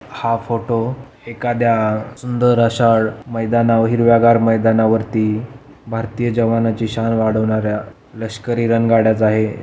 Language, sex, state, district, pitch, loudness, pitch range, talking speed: Marathi, male, Maharashtra, Pune, 115 Hz, -16 LUFS, 110-120 Hz, 110 wpm